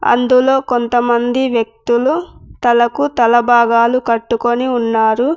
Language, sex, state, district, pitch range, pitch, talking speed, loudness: Telugu, female, Telangana, Mahabubabad, 235-255 Hz, 240 Hz, 80 wpm, -14 LUFS